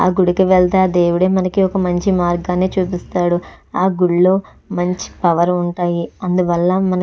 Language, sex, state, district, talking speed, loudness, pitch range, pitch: Telugu, female, Andhra Pradesh, Chittoor, 155 wpm, -16 LUFS, 175-185 Hz, 180 Hz